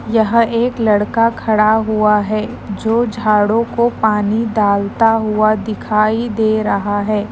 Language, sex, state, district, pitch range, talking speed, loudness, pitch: Hindi, female, Maharashtra, Chandrapur, 210-230 Hz, 130 wpm, -15 LUFS, 215 Hz